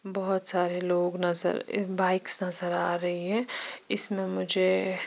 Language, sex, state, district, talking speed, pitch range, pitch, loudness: Hindi, female, Chandigarh, Chandigarh, 130 wpm, 175-190 Hz, 180 Hz, -18 LUFS